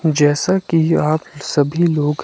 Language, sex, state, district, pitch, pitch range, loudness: Hindi, male, Himachal Pradesh, Shimla, 155 Hz, 150-170 Hz, -16 LUFS